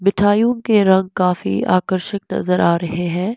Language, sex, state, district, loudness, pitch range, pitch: Hindi, female, Bihar, West Champaran, -17 LUFS, 180-205 Hz, 190 Hz